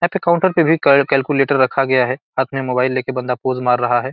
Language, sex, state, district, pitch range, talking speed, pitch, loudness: Hindi, male, Bihar, Gopalganj, 125-140 Hz, 260 wpm, 135 Hz, -16 LUFS